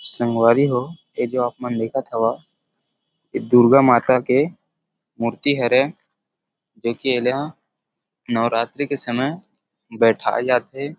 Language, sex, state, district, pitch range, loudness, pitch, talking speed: Chhattisgarhi, male, Chhattisgarh, Rajnandgaon, 115-135 Hz, -19 LUFS, 125 Hz, 125 wpm